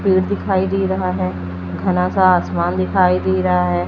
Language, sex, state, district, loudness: Hindi, female, Uttar Pradesh, Lalitpur, -17 LUFS